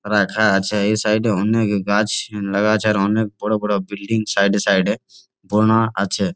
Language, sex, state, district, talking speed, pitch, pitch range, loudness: Bengali, male, West Bengal, Jalpaiguri, 190 wpm, 105 Hz, 100-110 Hz, -18 LUFS